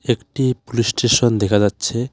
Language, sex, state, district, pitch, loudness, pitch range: Bengali, male, West Bengal, Alipurduar, 120 Hz, -18 LUFS, 110-125 Hz